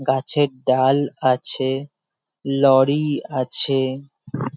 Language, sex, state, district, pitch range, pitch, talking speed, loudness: Bengali, male, West Bengal, Kolkata, 130-145 Hz, 135 Hz, 80 wpm, -19 LUFS